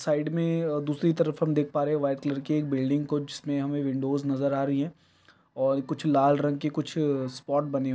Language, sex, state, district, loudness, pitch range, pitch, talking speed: Hindi, male, Uttar Pradesh, Varanasi, -27 LUFS, 140-150 Hz, 145 Hz, 225 wpm